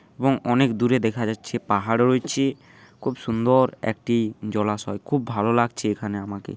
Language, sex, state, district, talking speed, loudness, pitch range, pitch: Bengali, male, West Bengal, Dakshin Dinajpur, 155 wpm, -23 LUFS, 105-130 Hz, 115 Hz